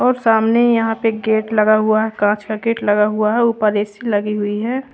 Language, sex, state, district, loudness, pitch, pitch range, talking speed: Hindi, female, Haryana, Rohtak, -16 LUFS, 220 Hz, 210-230 Hz, 230 wpm